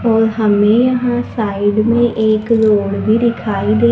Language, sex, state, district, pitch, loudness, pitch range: Hindi, female, Maharashtra, Gondia, 220 Hz, -14 LUFS, 205-235 Hz